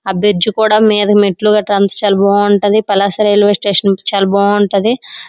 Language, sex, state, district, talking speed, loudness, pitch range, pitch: Telugu, female, Andhra Pradesh, Srikakulam, 135 wpm, -11 LUFS, 200-210 Hz, 205 Hz